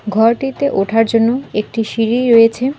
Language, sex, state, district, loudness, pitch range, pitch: Bengali, female, West Bengal, Alipurduar, -14 LUFS, 225-250 Hz, 230 Hz